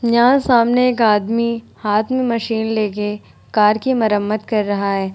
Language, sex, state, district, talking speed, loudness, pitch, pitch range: Hindi, female, Bihar, Vaishali, 175 wpm, -17 LUFS, 220 Hz, 210-235 Hz